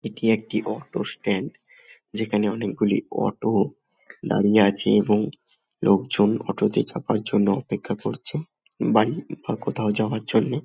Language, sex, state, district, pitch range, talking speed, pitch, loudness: Bengali, male, West Bengal, Malda, 105-110 Hz, 135 wpm, 105 Hz, -23 LUFS